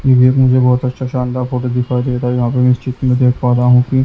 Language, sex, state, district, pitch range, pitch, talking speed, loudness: Hindi, male, Haryana, Jhajjar, 125-130 Hz, 125 Hz, 325 wpm, -14 LUFS